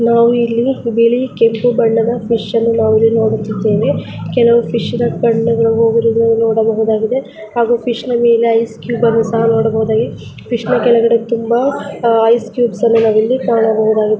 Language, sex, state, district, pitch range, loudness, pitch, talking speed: Kannada, female, Karnataka, Mysore, 225-235 Hz, -13 LUFS, 230 Hz, 115 wpm